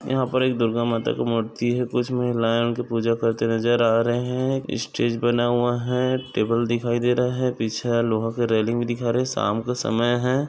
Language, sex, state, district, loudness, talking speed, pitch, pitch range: Hindi, male, Maharashtra, Sindhudurg, -23 LUFS, 215 wpm, 120 Hz, 115-125 Hz